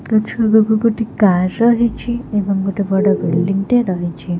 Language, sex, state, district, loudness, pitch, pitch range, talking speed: Odia, female, Odisha, Khordha, -16 LUFS, 205 Hz, 190-225 Hz, 135 wpm